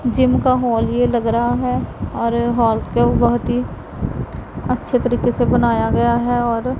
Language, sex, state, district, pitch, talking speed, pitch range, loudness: Hindi, female, Punjab, Pathankot, 235 Hz, 170 wpm, 230-245 Hz, -18 LUFS